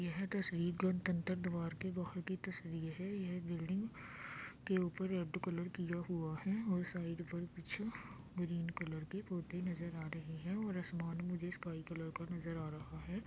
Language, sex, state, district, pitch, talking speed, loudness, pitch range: Hindi, female, Bihar, Darbhanga, 175 Hz, 180 wpm, -42 LUFS, 170-185 Hz